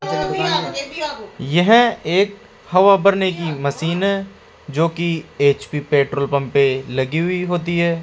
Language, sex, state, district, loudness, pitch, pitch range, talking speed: Hindi, male, Rajasthan, Jaipur, -18 LUFS, 170 Hz, 145-195 Hz, 125 wpm